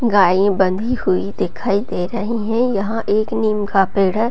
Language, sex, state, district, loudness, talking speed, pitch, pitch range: Hindi, female, Bihar, Gopalganj, -18 LUFS, 210 wpm, 205 Hz, 195-225 Hz